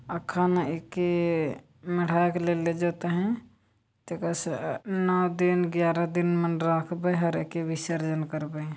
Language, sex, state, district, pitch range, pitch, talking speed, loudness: Hindi, female, Chhattisgarh, Jashpur, 160-175 Hz, 170 Hz, 150 wpm, -27 LUFS